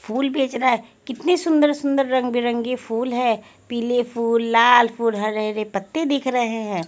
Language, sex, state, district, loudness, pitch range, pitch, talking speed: Hindi, female, Haryana, Rohtak, -20 LUFS, 225-260 Hz, 240 Hz, 185 wpm